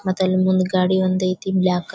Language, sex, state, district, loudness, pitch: Kannada, female, Karnataka, Bijapur, -19 LUFS, 185 Hz